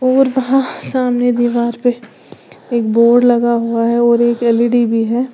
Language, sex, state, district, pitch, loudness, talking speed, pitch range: Hindi, female, Uttar Pradesh, Lalitpur, 240 Hz, -14 LUFS, 170 wpm, 235-245 Hz